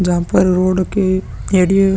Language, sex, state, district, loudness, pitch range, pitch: Hindi, male, Chhattisgarh, Sukma, -15 LUFS, 185-190 Hz, 185 Hz